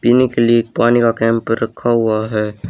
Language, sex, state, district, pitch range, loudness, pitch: Hindi, male, Haryana, Charkhi Dadri, 110-120 Hz, -15 LUFS, 115 Hz